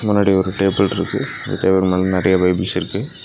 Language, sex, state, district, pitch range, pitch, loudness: Tamil, male, Tamil Nadu, Nilgiris, 95-100 Hz, 95 Hz, -17 LUFS